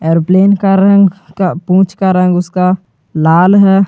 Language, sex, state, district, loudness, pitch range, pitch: Hindi, male, Jharkhand, Garhwa, -10 LUFS, 175-195 Hz, 185 Hz